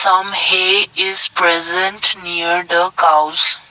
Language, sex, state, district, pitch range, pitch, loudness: English, male, Assam, Kamrup Metropolitan, 170-190 Hz, 180 Hz, -13 LUFS